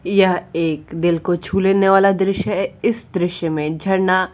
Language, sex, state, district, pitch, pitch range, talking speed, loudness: Hindi, female, Uttar Pradesh, Varanasi, 185 Hz, 170-195 Hz, 205 wpm, -18 LUFS